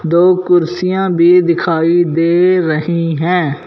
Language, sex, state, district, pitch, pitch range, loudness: Hindi, male, Punjab, Fazilka, 170 Hz, 165-180 Hz, -12 LUFS